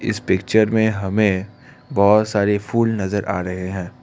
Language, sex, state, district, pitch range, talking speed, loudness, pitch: Hindi, male, Assam, Kamrup Metropolitan, 95-110 Hz, 165 wpm, -19 LUFS, 100 Hz